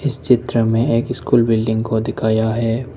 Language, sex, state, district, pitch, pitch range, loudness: Hindi, male, Arunachal Pradesh, Lower Dibang Valley, 115 Hz, 110-125 Hz, -17 LUFS